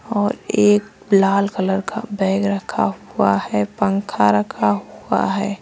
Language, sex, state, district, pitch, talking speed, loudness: Hindi, female, Uttar Pradesh, Saharanpur, 195 Hz, 140 wpm, -19 LUFS